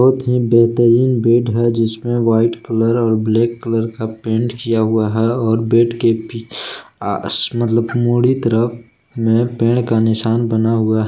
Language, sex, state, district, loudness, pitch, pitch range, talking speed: Hindi, male, Jharkhand, Palamu, -16 LUFS, 115 Hz, 115-120 Hz, 155 wpm